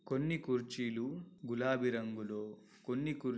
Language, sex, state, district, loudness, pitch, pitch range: Telugu, male, Telangana, Karimnagar, -38 LUFS, 125 Hz, 115-135 Hz